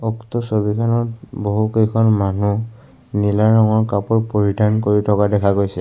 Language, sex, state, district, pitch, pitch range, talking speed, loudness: Assamese, male, Assam, Kamrup Metropolitan, 110 Hz, 105-115 Hz, 125 wpm, -17 LUFS